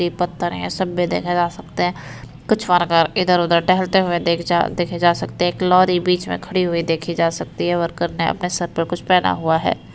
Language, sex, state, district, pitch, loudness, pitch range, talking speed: Hindi, female, Uttar Pradesh, Varanasi, 175 Hz, -19 LUFS, 170-180 Hz, 225 wpm